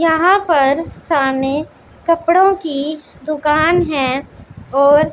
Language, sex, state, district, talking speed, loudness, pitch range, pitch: Hindi, female, Punjab, Pathankot, 95 wpm, -15 LUFS, 280-335 Hz, 305 Hz